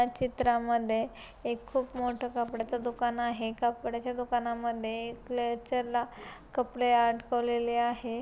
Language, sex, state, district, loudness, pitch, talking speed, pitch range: Marathi, female, Maharashtra, Pune, -31 LUFS, 240 Hz, 110 wpm, 235-245 Hz